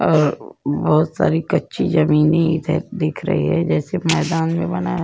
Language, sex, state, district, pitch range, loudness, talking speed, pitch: Hindi, female, Uttar Pradesh, Jyotiba Phule Nagar, 155-170 Hz, -18 LUFS, 165 wpm, 160 Hz